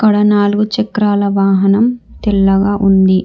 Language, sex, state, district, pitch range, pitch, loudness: Telugu, female, Telangana, Hyderabad, 195-210 Hz, 205 Hz, -12 LUFS